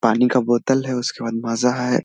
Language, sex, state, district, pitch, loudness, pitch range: Hindi, male, Bihar, Muzaffarpur, 125 Hz, -20 LUFS, 115-125 Hz